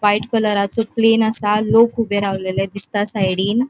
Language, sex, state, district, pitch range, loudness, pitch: Konkani, female, Goa, North and South Goa, 200-225 Hz, -17 LUFS, 210 Hz